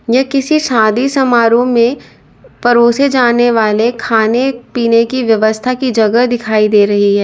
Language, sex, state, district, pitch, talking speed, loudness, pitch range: Hindi, female, Uttar Pradesh, Lalitpur, 235 Hz, 150 wpm, -11 LUFS, 220-255 Hz